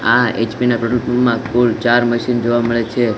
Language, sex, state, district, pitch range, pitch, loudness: Gujarati, male, Gujarat, Gandhinagar, 115-125 Hz, 120 Hz, -15 LUFS